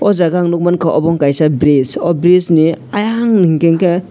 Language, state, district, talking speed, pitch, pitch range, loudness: Kokborok, Tripura, West Tripura, 175 wpm, 170 Hz, 160-180 Hz, -12 LUFS